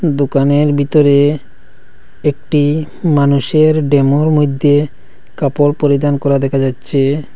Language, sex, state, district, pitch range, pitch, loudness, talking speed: Bengali, male, Assam, Hailakandi, 140-150 Hz, 145 Hz, -13 LUFS, 90 wpm